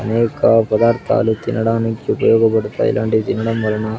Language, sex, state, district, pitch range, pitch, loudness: Telugu, male, Andhra Pradesh, Sri Satya Sai, 110-115 Hz, 115 Hz, -16 LUFS